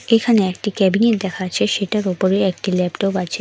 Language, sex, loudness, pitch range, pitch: Bengali, female, -18 LUFS, 185-210 Hz, 195 Hz